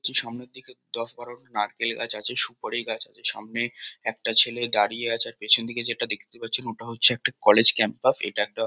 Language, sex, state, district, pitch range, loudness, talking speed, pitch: Bengali, male, West Bengal, Kolkata, 115-120 Hz, -22 LUFS, 200 wpm, 115 Hz